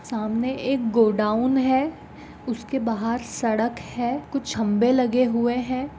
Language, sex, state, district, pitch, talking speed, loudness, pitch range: Hindi, female, Goa, North and South Goa, 240 Hz, 130 wpm, -23 LUFS, 225-260 Hz